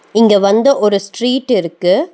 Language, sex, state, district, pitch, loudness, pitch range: Tamil, female, Tamil Nadu, Nilgiris, 220 Hz, -13 LUFS, 200-260 Hz